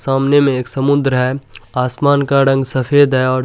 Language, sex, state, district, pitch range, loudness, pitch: Hindi, male, Bihar, Supaul, 130-140 Hz, -14 LUFS, 135 Hz